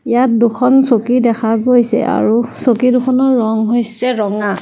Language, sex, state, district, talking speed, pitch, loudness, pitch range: Assamese, female, Assam, Sonitpur, 130 wpm, 240 Hz, -13 LUFS, 225-250 Hz